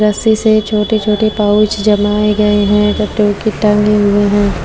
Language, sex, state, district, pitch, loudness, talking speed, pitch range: Hindi, female, Maharashtra, Chandrapur, 210 Hz, -12 LUFS, 130 wpm, 205-215 Hz